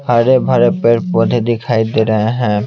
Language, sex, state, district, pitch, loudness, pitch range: Hindi, male, Bihar, Patna, 115 Hz, -13 LUFS, 110-120 Hz